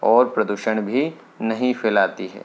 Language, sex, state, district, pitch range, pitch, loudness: Hindi, male, Uttar Pradesh, Hamirpur, 110-130 Hz, 110 Hz, -21 LUFS